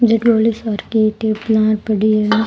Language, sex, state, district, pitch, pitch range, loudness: Rajasthani, female, Rajasthan, Churu, 220 Hz, 215-225 Hz, -16 LUFS